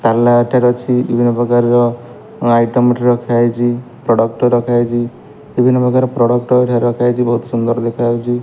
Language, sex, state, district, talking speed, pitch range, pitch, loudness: Odia, male, Odisha, Malkangiri, 120 wpm, 120-125 Hz, 120 Hz, -14 LUFS